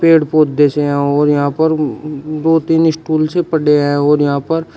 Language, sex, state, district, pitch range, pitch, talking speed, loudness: Hindi, male, Uttar Pradesh, Shamli, 145-160 Hz, 155 Hz, 200 wpm, -14 LUFS